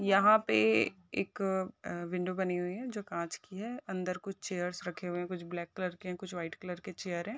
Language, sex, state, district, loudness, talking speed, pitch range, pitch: Hindi, female, Chhattisgarh, Bilaspur, -34 LUFS, 220 wpm, 175-195 Hz, 180 Hz